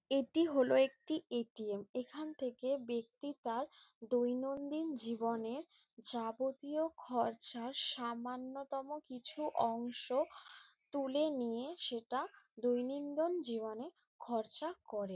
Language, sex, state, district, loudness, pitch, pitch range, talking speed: Bengali, female, West Bengal, Jalpaiguri, -39 LUFS, 260 Hz, 235-300 Hz, 85 wpm